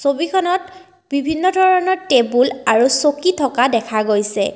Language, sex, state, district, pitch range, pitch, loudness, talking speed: Assamese, female, Assam, Kamrup Metropolitan, 240-370 Hz, 280 Hz, -16 LUFS, 120 wpm